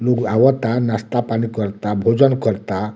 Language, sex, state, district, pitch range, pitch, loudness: Bhojpuri, male, Bihar, Muzaffarpur, 105-120 Hz, 115 Hz, -18 LUFS